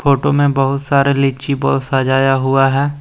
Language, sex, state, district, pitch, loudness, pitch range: Hindi, male, Jharkhand, Deoghar, 135 Hz, -14 LUFS, 135-140 Hz